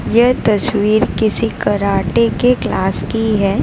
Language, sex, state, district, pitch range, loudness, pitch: Hindi, female, Gujarat, Valsad, 200-225 Hz, -15 LUFS, 215 Hz